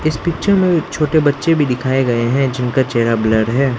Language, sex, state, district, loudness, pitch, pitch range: Hindi, male, Arunachal Pradesh, Lower Dibang Valley, -15 LUFS, 135 Hz, 120-155 Hz